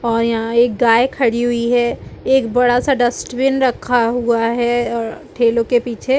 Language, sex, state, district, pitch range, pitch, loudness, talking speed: Hindi, female, Chhattisgarh, Bilaspur, 230-245 Hz, 240 Hz, -16 LUFS, 185 wpm